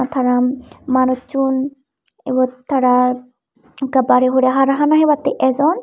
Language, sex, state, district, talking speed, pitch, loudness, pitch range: Chakma, female, Tripura, Unakoti, 105 wpm, 260 Hz, -16 LUFS, 255-275 Hz